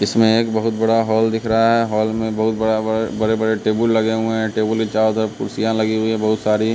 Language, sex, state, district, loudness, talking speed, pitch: Hindi, male, Bihar, West Champaran, -18 LUFS, 250 wpm, 110 Hz